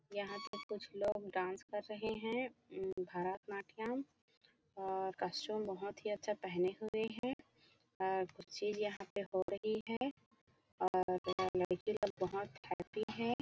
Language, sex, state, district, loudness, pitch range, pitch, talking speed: Hindi, female, Chhattisgarh, Bilaspur, -41 LUFS, 185-215 Hz, 200 Hz, 150 wpm